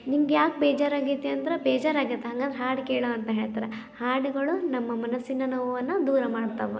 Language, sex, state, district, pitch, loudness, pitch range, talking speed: Kannada, female, Karnataka, Belgaum, 265 Hz, -27 LUFS, 240-285 Hz, 150 wpm